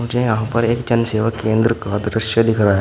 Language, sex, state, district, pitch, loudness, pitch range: Hindi, male, Uttar Pradesh, Shamli, 115 Hz, -17 LUFS, 110-115 Hz